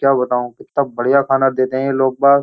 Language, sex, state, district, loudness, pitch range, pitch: Hindi, male, Uttar Pradesh, Jyotiba Phule Nagar, -16 LUFS, 130-140 Hz, 135 Hz